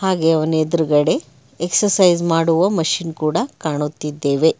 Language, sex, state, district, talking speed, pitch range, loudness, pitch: Kannada, male, Karnataka, Bangalore, 105 wpm, 150-175 Hz, -18 LUFS, 165 Hz